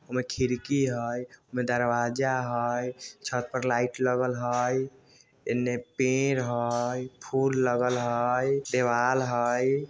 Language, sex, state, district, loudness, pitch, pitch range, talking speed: Bajjika, male, Bihar, Vaishali, -28 LUFS, 125 Hz, 120-130 Hz, 115 wpm